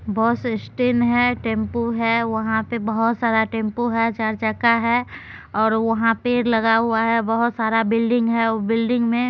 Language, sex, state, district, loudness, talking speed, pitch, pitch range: Maithili, female, Bihar, Supaul, -20 LUFS, 180 wpm, 230 Hz, 225-235 Hz